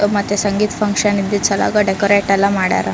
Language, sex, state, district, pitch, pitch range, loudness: Kannada, female, Karnataka, Raichur, 205 Hz, 195-205 Hz, -15 LUFS